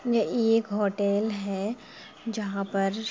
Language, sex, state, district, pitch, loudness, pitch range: Hindi, female, Bihar, Gopalganj, 210 Hz, -27 LUFS, 200-225 Hz